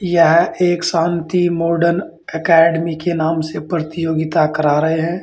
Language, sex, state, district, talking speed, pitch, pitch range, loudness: Hindi, male, Uttar Pradesh, Saharanpur, 135 wpm, 165 Hz, 160-170 Hz, -16 LUFS